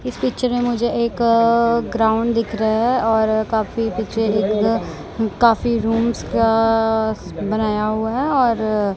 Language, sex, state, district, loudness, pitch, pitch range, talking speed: Hindi, male, Punjab, Kapurthala, -18 LUFS, 225 Hz, 220-235 Hz, 140 wpm